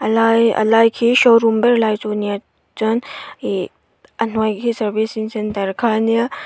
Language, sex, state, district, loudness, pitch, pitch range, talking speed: Mizo, female, Mizoram, Aizawl, -17 LUFS, 225 Hz, 215-230 Hz, 175 wpm